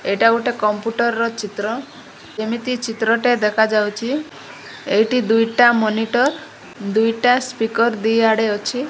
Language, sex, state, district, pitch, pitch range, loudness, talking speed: Odia, female, Odisha, Malkangiri, 225 Hz, 220-245 Hz, -18 LUFS, 115 wpm